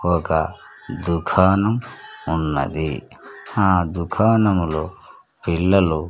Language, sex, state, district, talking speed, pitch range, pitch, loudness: Telugu, male, Andhra Pradesh, Sri Satya Sai, 70 wpm, 80-95 Hz, 85 Hz, -20 LUFS